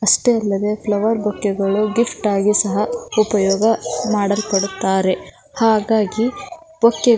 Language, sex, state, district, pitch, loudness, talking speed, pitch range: Kannada, female, Karnataka, Belgaum, 215 Hz, -18 LUFS, 100 wpm, 200-230 Hz